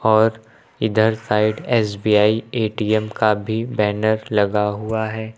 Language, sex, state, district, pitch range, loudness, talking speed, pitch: Hindi, male, Uttar Pradesh, Lucknow, 105-110 Hz, -19 LUFS, 125 wpm, 110 Hz